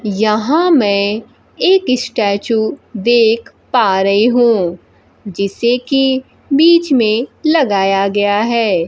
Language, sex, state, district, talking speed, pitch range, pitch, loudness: Hindi, female, Bihar, Kaimur, 100 wpm, 205-260 Hz, 225 Hz, -13 LUFS